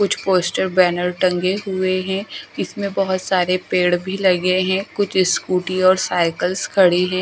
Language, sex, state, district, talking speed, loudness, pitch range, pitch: Hindi, female, Haryana, Charkhi Dadri, 160 wpm, -18 LUFS, 180-190 Hz, 185 Hz